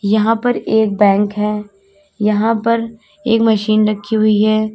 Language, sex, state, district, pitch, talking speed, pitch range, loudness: Hindi, female, Uttar Pradesh, Lalitpur, 215 Hz, 150 wpm, 210-225 Hz, -15 LUFS